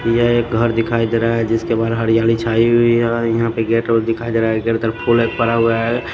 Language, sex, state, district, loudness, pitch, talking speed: Hindi, male, Maharashtra, Washim, -16 LUFS, 115 Hz, 255 wpm